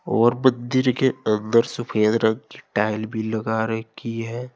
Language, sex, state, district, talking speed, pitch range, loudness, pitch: Hindi, male, Uttar Pradesh, Saharanpur, 160 wpm, 110-120 Hz, -22 LUFS, 115 Hz